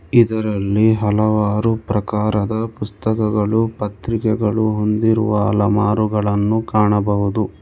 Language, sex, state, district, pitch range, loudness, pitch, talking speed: Kannada, male, Karnataka, Bangalore, 105-110 Hz, -18 LUFS, 105 Hz, 65 wpm